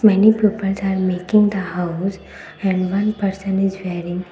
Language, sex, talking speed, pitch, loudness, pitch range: English, female, 165 wpm, 195 Hz, -19 LUFS, 185-200 Hz